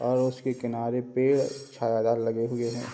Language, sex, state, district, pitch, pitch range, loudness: Hindi, male, Bihar, Sitamarhi, 120 Hz, 115-130 Hz, -27 LUFS